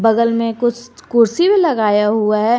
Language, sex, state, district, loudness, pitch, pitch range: Hindi, female, Jharkhand, Garhwa, -15 LUFS, 230 Hz, 220-245 Hz